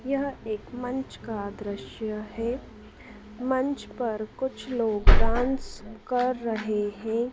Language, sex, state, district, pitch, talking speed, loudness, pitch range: Hindi, female, Madhya Pradesh, Dhar, 230 Hz, 115 wpm, -29 LUFS, 215-255 Hz